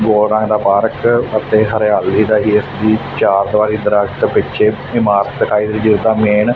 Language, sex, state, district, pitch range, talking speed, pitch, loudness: Punjabi, male, Punjab, Fazilka, 105-110 Hz, 165 wpm, 110 Hz, -13 LUFS